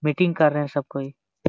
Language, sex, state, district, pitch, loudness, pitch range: Hindi, male, Jharkhand, Jamtara, 145 Hz, -23 LUFS, 135-155 Hz